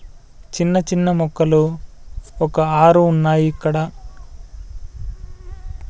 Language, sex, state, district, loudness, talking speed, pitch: Telugu, male, Andhra Pradesh, Sri Satya Sai, -17 LUFS, 70 wpm, 155 Hz